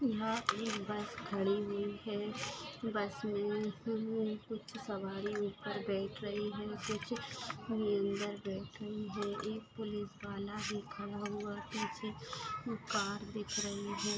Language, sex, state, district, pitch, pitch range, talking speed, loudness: Hindi, female, Maharashtra, Aurangabad, 210 Hz, 205-215 Hz, 125 wpm, -39 LUFS